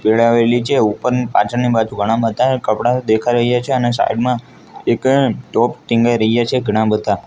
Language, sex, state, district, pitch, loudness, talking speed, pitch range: Gujarati, male, Gujarat, Gandhinagar, 120 Hz, -16 LUFS, 175 wpm, 110-125 Hz